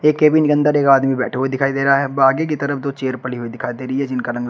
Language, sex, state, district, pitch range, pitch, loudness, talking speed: Hindi, male, Uttar Pradesh, Shamli, 130-140 Hz, 135 Hz, -17 LUFS, 335 wpm